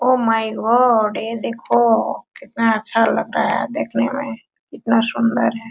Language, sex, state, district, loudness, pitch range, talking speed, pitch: Hindi, female, Bihar, Araria, -18 LUFS, 225-235 Hz, 155 wpm, 230 Hz